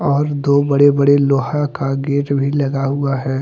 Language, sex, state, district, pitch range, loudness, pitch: Hindi, male, Jharkhand, Deoghar, 135-145 Hz, -16 LUFS, 140 Hz